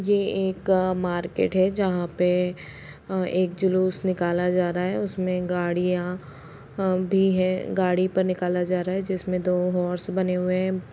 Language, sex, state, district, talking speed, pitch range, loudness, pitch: Hindi, female, Bihar, East Champaran, 165 wpm, 180-185 Hz, -24 LUFS, 180 Hz